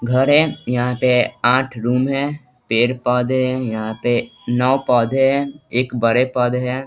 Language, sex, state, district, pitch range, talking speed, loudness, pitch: Hindi, male, Bihar, East Champaran, 120-130 Hz, 155 wpm, -18 LUFS, 125 Hz